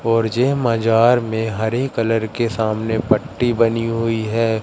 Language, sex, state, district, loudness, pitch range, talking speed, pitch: Hindi, male, Madhya Pradesh, Katni, -18 LUFS, 110-115 Hz, 155 wpm, 115 Hz